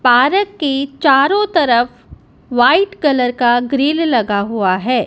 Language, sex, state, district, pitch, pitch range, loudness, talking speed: Hindi, female, Punjab, Kapurthala, 270 Hz, 245-315 Hz, -14 LUFS, 130 wpm